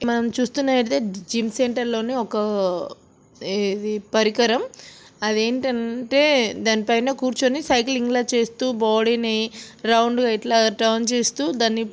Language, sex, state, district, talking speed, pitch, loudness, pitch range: Telugu, female, Andhra Pradesh, Srikakulam, 115 wpm, 235 Hz, -21 LUFS, 220-250 Hz